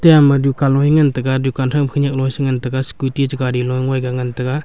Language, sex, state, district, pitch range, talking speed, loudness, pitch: Wancho, male, Arunachal Pradesh, Longding, 130-140 Hz, 205 wpm, -16 LUFS, 135 Hz